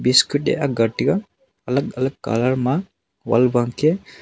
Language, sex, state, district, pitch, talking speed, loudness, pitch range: Wancho, male, Arunachal Pradesh, Longding, 130 Hz, 140 wpm, -20 LUFS, 125-155 Hz